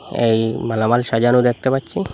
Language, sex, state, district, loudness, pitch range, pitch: Bengali, male, Assam, Hailakandi, -17 LUFS, 115-125 Hz, 115 Hz